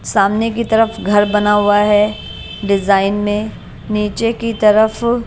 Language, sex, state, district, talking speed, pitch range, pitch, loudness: Hindi, female, Himachal Pradesh, Shimla, 135 wpm, 205-225 Hz, 210 Hz, -14 LUFS